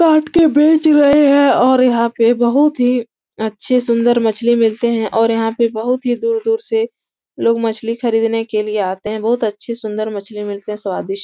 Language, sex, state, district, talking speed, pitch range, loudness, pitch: Hindi, female, Uttar Pradesh, Etah, 195 wpm, 220-245 Hz, -15 LUFS, 230 Hz